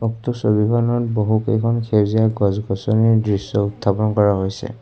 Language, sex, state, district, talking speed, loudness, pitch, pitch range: Assamese, male, Assam, Kamrup Metropolitan, 125 wpm, -18 LUFS, 110 Hz, 105-115 Hz